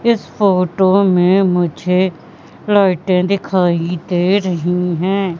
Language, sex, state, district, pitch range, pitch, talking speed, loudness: Hindi, female, Madhya Pradesh, Katni, 175-195 Hz, 185 Hz, 100 wpm, -15 LUFS